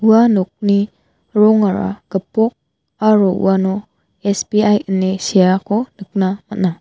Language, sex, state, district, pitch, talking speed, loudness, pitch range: Garo, female, Meghalaya, West Garo Hills, 200 Hz, 95 wpm, -16 LUFS, 190-215 Hz